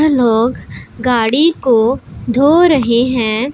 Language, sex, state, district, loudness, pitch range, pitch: Hindi, female, Punjab, Pathankot, -13 LUFS, 235-285 Hz, 250 Hz